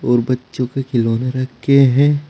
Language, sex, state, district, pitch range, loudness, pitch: Hindi, male, Uttar Pradesh, Saharanpur, 120-135 Hz, -16 LUFS, 130 Hz